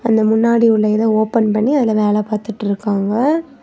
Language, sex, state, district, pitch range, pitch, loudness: Tamil, female, Tamil Nadu, Kanyakumari, 215-230 Hz, 220 Hz, -15 LUFS